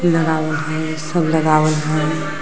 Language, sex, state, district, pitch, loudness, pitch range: Magahi, female, Jharkhand, Palamu, 155 Hz, -18 LUFS, 155-160 Hz